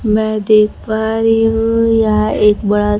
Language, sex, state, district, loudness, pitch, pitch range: Hindi, female, Bihar, Kaimur, -13 LUFS, 215 Hz, 210-225 Hz